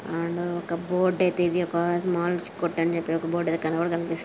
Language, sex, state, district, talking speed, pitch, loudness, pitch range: Telugu, male, Andhra Pradesh, Chittoor, 210 wpm, 170 Hz, -26 LUFS, 165-175 Hz